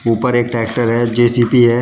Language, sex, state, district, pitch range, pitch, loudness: Hindi, male, Uttar Pradesh, Shamli, 115-120 Hz, 120 Hz, -14 LUFS